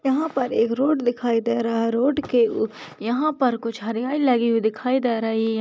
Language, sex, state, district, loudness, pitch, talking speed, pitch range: Hindi, female, West Bengal, Dakshin Dinajpur, -22 LUFS, 235 Hz, 215 wpm, 230-265 Hz